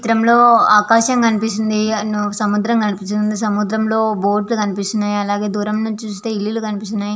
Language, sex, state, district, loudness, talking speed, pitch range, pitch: Telugu, female, Andhra Pradesh, Visakhapatnam, -16 LUFS, 165 wpm, 210-220 Hz, 215 Hz